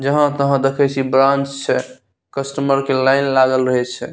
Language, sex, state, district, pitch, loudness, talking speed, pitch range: Maithili, male, Bihar, Saharsa, 135 Hz, -16 LUFS, 175 wpm, 130-140 Hz